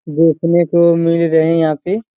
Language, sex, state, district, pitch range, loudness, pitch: Hindi, male, Chhattisgarh, Raigarh, 160-170 Hz, -13 LUFS, 165 Hz